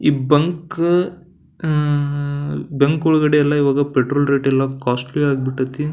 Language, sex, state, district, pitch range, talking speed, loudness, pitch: Kannada, male, Karnataka, Belgaum, 135-150 Hz, 120 wpm, -18 LUFS, 145 Hz